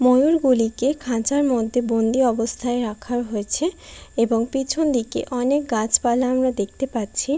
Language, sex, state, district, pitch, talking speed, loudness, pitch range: Bengali, female, West Bengal, Kolkata, 245 Hz, 130 wpm, -21 LUFS, 230-270 Hz